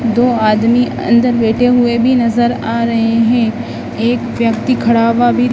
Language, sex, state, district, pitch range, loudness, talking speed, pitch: Hindi, female, Madhya Pradesh, Dhar, 230-245 Hz, -13 LUFS, 165 wpm, 235 Hz